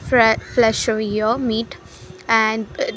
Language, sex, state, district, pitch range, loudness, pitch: English, female, Haryana, Rohtak, 220-230 Hz, -18 LUFS, 225 Hz